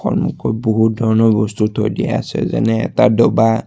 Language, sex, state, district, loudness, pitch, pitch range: Assamese, male, Assam, Sonitpur, -15 LUFS, 110 Hz, 110-115 Hz